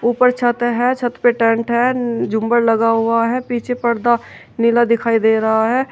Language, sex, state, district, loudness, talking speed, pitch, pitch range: Hindi, female, Uttar Pradesh, Shamli, -16 LUFS, 180 wpm, 235 Hz, 230-245 Hz